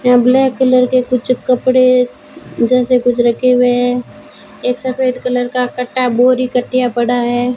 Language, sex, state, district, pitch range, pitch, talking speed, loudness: Hindi, female, Rajasthan, Bikaner, 245-255 Hz, 250 Hz, 160 wpm, -13 LUFS